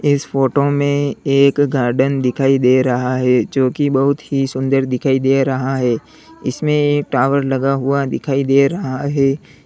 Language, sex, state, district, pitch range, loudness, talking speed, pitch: Hindi, male, Uttar Pradesh, Lalitpur, 130-140 Hz, -16 LUFS, 170 wpm, 135 Hz